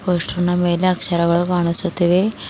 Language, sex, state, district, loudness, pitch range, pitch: Kannada, female, Karnataka, Bidar, -17 LUFS, 170-180 Hz, 175 Hz